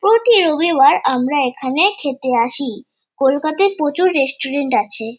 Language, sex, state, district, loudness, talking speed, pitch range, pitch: Bengali, female, West Bengal, Kolkata, -15 LUFS, 115 wpm, 260-365 Hz, 280 Hz